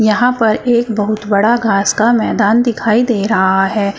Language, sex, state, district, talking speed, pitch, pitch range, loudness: Hindi, female, Uttar Pradesh, Shamli, 180 wpm, 215 Hz, 205-235 Hz, -13 LUFS